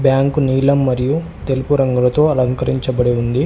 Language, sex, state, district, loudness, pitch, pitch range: Telugu, male, Telangana, Hyderabad, -16 LUFS, 130 Hz, 125-140 Hz